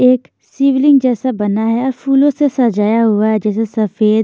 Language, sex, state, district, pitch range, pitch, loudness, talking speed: Hindi, female, Maharashtra, Washim, 215-265 Hz, 235 Hz, -14 LUFS, 170 wpm